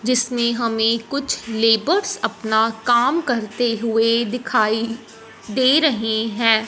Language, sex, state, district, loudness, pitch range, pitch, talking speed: Hindi, female, Punjab, Fazilka, -19 LUFS, 225-250 Hz, 230 Hz, 100 wpm